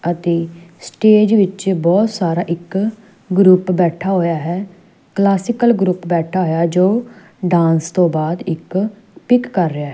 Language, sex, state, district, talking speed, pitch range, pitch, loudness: Punjabi, female, Punjab, Fazilka, 135 wpm, 170-200 Hz, 185 Hz, -16 LUFS